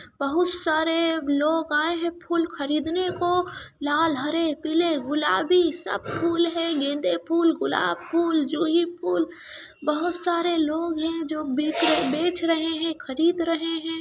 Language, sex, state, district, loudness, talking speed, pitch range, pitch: Hindi, female, Bihar, Kishanganj, -24 LUFS, 150 wpm, 310-340 Hz, 330 Hz